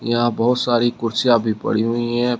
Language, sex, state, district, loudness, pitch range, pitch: Hindi, male, Uttar Pradesh, Shamli, -19 LUFS, 115-120 Hz, 120 Hz